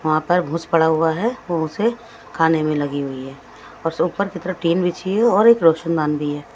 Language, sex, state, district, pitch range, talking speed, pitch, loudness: Hindi, male, Bihar, West Champaran, 155-190 Hz, 230 wpm, 165 Hz, -19 LUFS